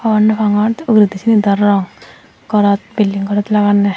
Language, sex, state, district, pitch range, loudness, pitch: Chakma, female, Tripura, Dhalai, 200-215 Hz, -13 LUFS, 205 Hz